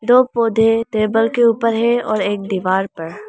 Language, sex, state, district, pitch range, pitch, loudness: Hindi, female, Arunachal Pradesh, Lower Dibang Valley, 205-230 Hz, 225 Hz, -16 LUFS